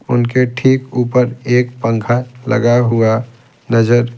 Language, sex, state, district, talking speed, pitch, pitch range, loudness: Hindi, male, Bihar, Patna, 115 wpm, 125 Hz, 120-125 Hz, -14 LUFS